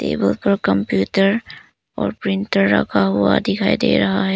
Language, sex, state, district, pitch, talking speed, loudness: Hindi, female, Arunachal Pradesh, Papum Pare, 100 Hz, 165 wpm, -18 LUFS